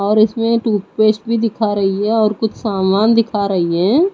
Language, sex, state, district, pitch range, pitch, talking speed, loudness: Hindi, female, Odisha, Nuapada, 200-225 Hz, 215 Hz, 190 wpm, -15 LUFS